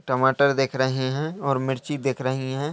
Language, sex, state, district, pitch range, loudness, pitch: Hindi, male, Uttar Pradesh, Hamirpur, 130-140 Hz, -24 LUFS, 135 Hz